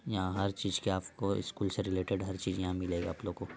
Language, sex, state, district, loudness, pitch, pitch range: Hindi, male, Uttar Pradesh, Ghazipur, -35 LUFS, 95 Hz, 90-100 Hz